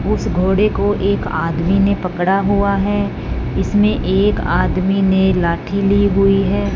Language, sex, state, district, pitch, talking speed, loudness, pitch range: Hindi, female, Punjab, Fazilka, 195 Hz, 150 wpm, -16 LUFS, 190-200 Hz